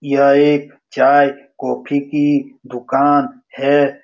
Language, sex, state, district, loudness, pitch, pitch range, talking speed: Hindi, male, Uttar Pradesh, Muzaffarnagar, -15 LUFS, 140 Hz, 140-145 Hz, 105 wpm